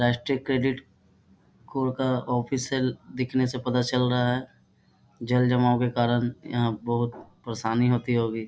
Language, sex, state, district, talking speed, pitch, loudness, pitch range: Hindi, male, Bihar, Bhagalpur, 155 wpm, 125 Hz, -26 LUFS, 120-130 Hz